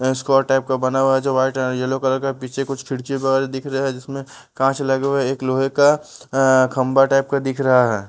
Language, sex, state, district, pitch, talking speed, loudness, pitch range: Hindi, male, Bihar, West Champaran, 135 Hz, 245 wpm, -19 LUFS, 130-135 Hz